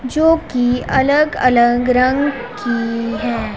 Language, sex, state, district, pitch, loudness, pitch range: Hindi, female, Punjab, Pathankot, 245 Hz, -16 LUFS, 235-265 Hz